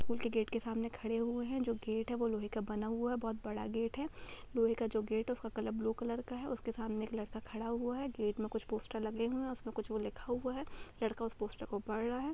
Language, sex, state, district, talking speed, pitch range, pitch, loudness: Hindi, female, Bihar, Purnia, 280 wpm, 220-240 Hz, 230 Hz, -39 LUFS